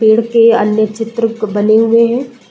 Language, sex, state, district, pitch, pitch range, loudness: Hindi, female, Uttar Pradesh, Deoria, 225 Hz, 215-230 Hz, -12 LUFS